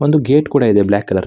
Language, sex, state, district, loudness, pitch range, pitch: Kannada, male, Karnataka, Mysore, -13 LUFS, 100-145 Hz, 135 Hz